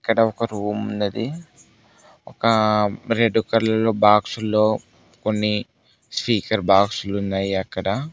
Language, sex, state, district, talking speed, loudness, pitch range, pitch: Telugu, male, Telangana, Mahabubabad, 120 wpm, -21 LUFS, 105-115 Hz, 110 Hz